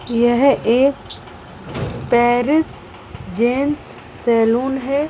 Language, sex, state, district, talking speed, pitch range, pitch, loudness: Hindi, female, Uttar Pradesh, Jyotiba Phule Nagar, 70 wpm, 240-275 Hz, 250 Hz, -17 LUFS